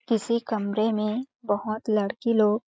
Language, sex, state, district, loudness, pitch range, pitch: Hindi, female, Chhattisgarh, Balrampur, -26 LUFS, 210-230 Hz, 220 Hz